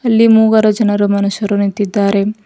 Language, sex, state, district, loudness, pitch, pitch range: Kannada, female, Karnataka, Bidar, -12 LUFS, 205 Hz, 200-220 Hz